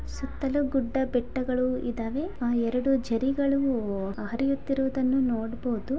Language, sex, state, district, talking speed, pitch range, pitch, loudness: Kannada, female, Karnataka, Dharwad, 100 wpm, 240-270 Hz, 255 Hz, -28 LUFS